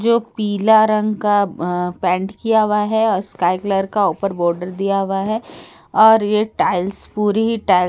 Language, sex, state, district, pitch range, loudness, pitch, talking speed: Hindi, female, Bihar, Katihar, 185-215 Hz, -17 LUFS, 205 Hz, 200 wpm